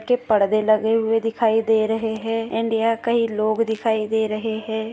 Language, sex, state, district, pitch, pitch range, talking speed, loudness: Hindi, female, Maharashtra, Nagpur, 225 Hz, 220-225 Hz, 195 wpm, -21 LUFS